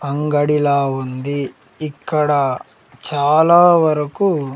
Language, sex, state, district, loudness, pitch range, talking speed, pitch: Telugu, male, Andhra Pradesh, Sri Satya Sai, -16 LUFS, 140-155 Hz, 65 wpm, 145 Hz